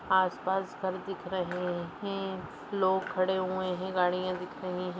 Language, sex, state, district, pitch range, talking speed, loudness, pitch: Hindi, female, Chhattisgarh, Rajnandgaon, 180-190 Hz, 155 wpm, -32 LUFS, 185 Hz